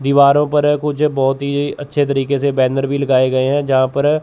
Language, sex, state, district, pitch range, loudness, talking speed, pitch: Hindi, male, Chandigarh, Chandigarh, 135-145 Hz, -15 LUFS, 215 wpm, 140 Hz